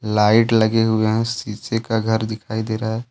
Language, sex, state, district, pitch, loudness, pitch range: Hindi, male, Jharkhand, Deoghar, 110 Hz, -19 LUFS, 110-115 Hz